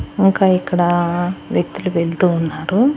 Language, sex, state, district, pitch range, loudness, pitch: Telugu, female, Andhra Pradesh, Annamaya, 170-190 Hz, -17 LUFS, 175 Hz